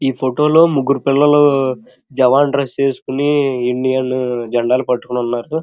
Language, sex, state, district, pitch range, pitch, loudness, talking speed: Telugu, male, Andhra Pradesh, Krishna, 125-140 Hz, 130 Hz, -15 LUFS, 130 wpm